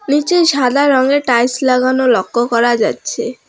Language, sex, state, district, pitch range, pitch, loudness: Bengali, female, West Bengal, Alipurduar, 240-285 Hz, 255 Hz, -13 LUFS